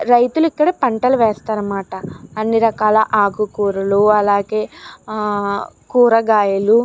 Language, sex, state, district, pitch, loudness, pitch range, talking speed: Telugu, female, Andhra Pradesh, Chittoor, 215 Hz, -16 LUFS, 205-230 Hz, 105 wpm